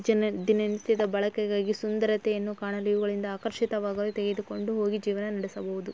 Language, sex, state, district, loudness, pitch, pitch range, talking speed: Kannada, female, Karnataka, Raichur, -29 LUFS, 210 Hz, 205-215 Hz, 110 wpm